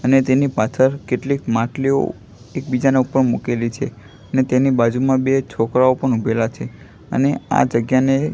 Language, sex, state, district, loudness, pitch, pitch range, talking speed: Gujarati, male, Gujarat, Gandhinagar, -18 LUFS, 130 Hz, 115-135 Hz, 150 wpm